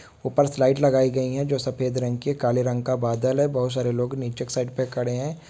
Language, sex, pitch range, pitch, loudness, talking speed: Hindi, male, 125-135 Hz, 130 Hz, -24 LUFS, 250 wpm